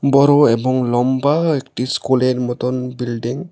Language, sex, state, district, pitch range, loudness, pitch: Bengali, male, Tripura, West Tripura, 125-140 Hz, -17 LUFS, 130 Hz